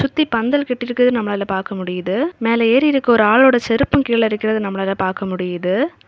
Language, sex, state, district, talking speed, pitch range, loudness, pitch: Tamil, female, Tamil Nadu, Kanyakumari, 165 wpm, 195-250 Hz, -17 LUFS, 230 Hz